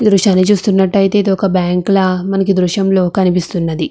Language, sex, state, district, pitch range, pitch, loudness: Telugu, female, Andhra Pradesh, Chittoor, 180-195 Hz, 190 Hz, -13 LUFS